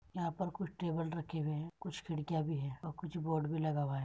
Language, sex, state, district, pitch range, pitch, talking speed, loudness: Hindi, male, Uttar Pradesh, Muzaffarnagar, 155-170 Hz, 160 Hz, 265 wpm, -39 LUFS